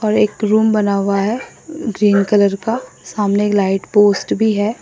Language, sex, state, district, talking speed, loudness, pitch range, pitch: Hindi, female, Assam, Sonitpur, 175 wpm, -16 LUFS, 200-220 Hz, 210 Hz